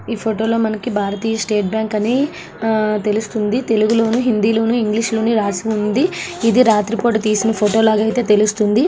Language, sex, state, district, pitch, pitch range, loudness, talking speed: Telugu, female, Andhra Pradesh, Srikakulam, 220 Hz, 215-230 Hz, -17 LUFS, 180 wpm